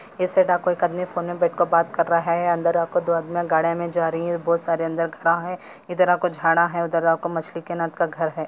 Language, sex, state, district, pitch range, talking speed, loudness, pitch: Hindi, female, Andhra Pradesh, Anantapur, 165-175 Hz, 210 wpm, -22 LUFS, 170 Hz